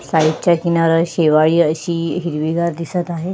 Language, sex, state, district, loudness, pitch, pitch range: Marathi, female, Maharashtra, Sindhudurg, -16 LUFS, 165 Hz, 160-170 Hz